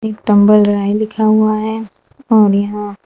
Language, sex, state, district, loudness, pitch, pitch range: Hindi, female, Gujarat, Valsad, -13 LUFS, 215 Hz, 205-220 Hz